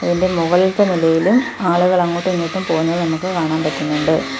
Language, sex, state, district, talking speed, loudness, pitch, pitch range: Malayalam, female, Kerala, Kollam, 120 wpm, -17 LUFS, 175 Hz, 165-185 Hz